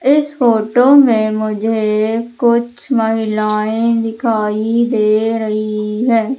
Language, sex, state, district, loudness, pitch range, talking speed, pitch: Hindi, female, Madhya Pradesh, Umaria, -14 LUFS, 215-235 Hz, 95 wpm, 225 Hz